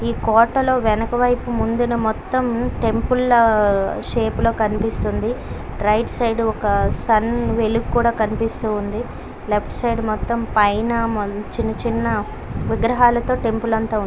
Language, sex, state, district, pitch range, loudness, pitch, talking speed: Telugu, female, Karnataka, Bellary, 215-235 Hz, -19 LUFS, 225 Hz, 120 wpm